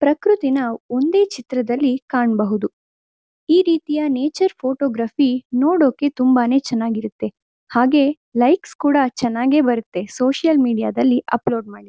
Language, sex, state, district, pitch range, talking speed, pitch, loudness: Kannada, female, Karnataka, Mysore, 240-290 Hz, 110 wpm, 260 Hz, -18 LUFS